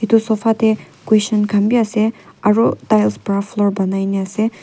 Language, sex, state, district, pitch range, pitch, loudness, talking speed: Nagamese, female, Nagaland, Kohima, 200-220 Hz, 215 Hz, -17 LUFS, 180 wpm